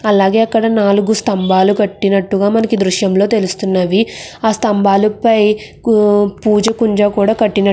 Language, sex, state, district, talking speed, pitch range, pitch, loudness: Telugu, female, Andhra Pradesh, Krishna, 115 wpm, 200-220 Hz, 210 Hz, -13 LUFS